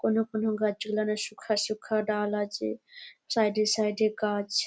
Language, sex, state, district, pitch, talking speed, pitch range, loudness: Bengali, female, West Bengal, Jalpaiguri, 215 Hz, 155 wpm, 210-215 Hz, -29 LUFS